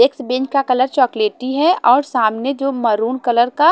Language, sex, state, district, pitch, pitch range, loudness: Hindi, female, Haryana, Jhajjar, 255 Hz, 240-275 Hz, -16 LUFS